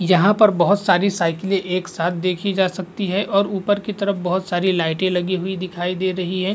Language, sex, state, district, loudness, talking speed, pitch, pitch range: Hindi, male, Bihar, Vaishali, -20 LUFS, 220 wpm, 185 Hz, 180-200 Hz